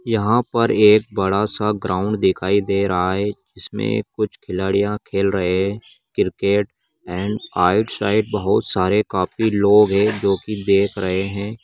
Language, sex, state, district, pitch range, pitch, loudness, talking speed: Magahi, male, Bihar, Gaya, 95-105 Hz, 100 Hz, -19 LUFS, 160 wpm